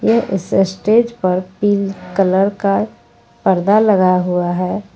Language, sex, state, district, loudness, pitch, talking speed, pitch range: Hindi, female, Jharkhand, Ranchi, -15 LUFS, 190 Hz, 120 wpm, 180-205 Hz